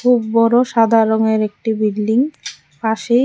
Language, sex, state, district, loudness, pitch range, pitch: Bengali, female, Tripura, West Tripura, -16 LUFS, 220-240 Hz, 225 Hz